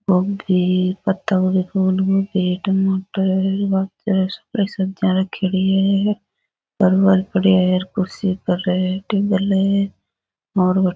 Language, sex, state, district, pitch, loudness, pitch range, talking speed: Rajasthani, female, Rajasthan, Churu, 190 Hz, -19 LUFS, 185-195 Hz, 70 wpm